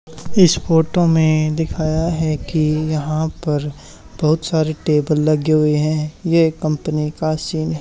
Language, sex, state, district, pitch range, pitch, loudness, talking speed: Hindi, male, Haryana, Charkhi Dadri, 155-160 Hz, 155 Hz, -18 LUFS, 155 wpm